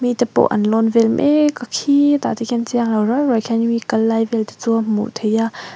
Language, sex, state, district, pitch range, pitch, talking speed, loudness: Mizo, female, Mizoram, Aizawl, 225-245 Hz, 230 Hz, 240 wpm, -17 LUFS